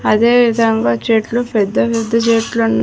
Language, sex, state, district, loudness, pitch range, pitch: Telugu, female, Andhra Pradesh, Sri Satya Sai, -14 LUFS, 220-230 Hz, 230 Hz